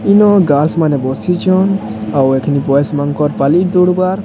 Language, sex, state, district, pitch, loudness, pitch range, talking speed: Odia, male, Odisha, Sambalpur, 155 Hz, -13 LUFS, 140-185 Hz, 140 wpm